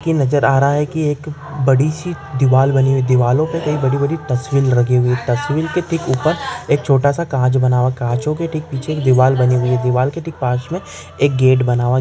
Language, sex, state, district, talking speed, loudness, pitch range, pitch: Hindi, male, Maharashtra, Chandrapur, 220 wpm, -16 LUFS, 130-150 Hz, 135 Hz